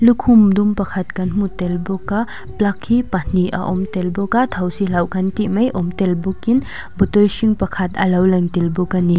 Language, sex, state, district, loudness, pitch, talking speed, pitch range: Mizo, female, Mizoram, Aizawl, -17 LUFS, 190 Hz, 210 wpm, 180-205 Hz